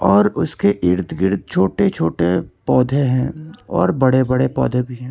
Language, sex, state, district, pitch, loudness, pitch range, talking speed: Hindi, male, Karnataka, Bangalore, 125 Hz, -18 LUFS, 95-130 Hz, 165 wpm